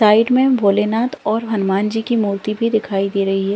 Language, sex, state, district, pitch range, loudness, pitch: Hindi, female, Uttarakhand, Uttarkashi, 200-230 Hz, -17 LUFS, 215 Hz